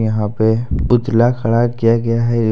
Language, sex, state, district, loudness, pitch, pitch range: Hindi, male, Jharkhand, Deoghar, -15 LUFS, 115 Hz, 110-120 Hz